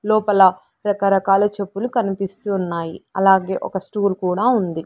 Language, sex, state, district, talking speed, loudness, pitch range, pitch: Telugu, female, Andhra Pradesh, Sri Satya Sai, 125 wpm, -19 LUFS, 190-205 Hz, 195 Hz